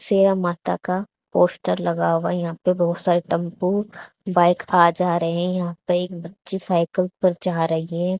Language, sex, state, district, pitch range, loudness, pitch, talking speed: Hindi, female, Haryana, Charkhi Dadri, 170-185 Hz, -21 LUFS, 175 Hz, 185 wpm